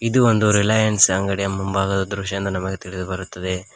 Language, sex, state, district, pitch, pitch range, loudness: Kannada, male, Karnataka, Koppal, 95 Hz, 95-105 Hz, -20 LUFS